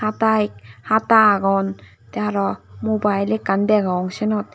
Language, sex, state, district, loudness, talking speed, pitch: Chakma, female, Tripura, Dhalai, -19 LUFS, 105 wpm, 195 Hz